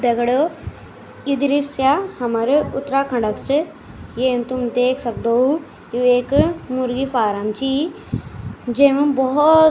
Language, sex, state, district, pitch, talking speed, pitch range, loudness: Garhwali, male, Uttarakhand, Tehri Garhwal, 265 Hz, 115 wpm, 245-285 Hz, -19 LUFS